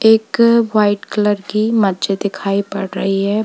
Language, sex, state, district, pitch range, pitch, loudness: Hindi, female, Uttar Pradesh, Lalitpur, 195-220 Hz, 205 Hz, -16 LUFS